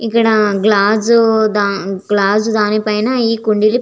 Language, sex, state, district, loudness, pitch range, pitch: Telugu, female, Andhra Pradesh, Visakhapatnam, -13 LUFS, 205-225 Hz, 215 Hz